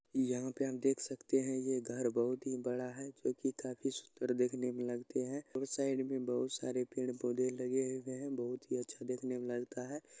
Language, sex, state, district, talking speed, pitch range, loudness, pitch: Maithili, male, Bihar, Supaul, 210 wpm, 125-135 Hz, -38 LUFS, 130 Hz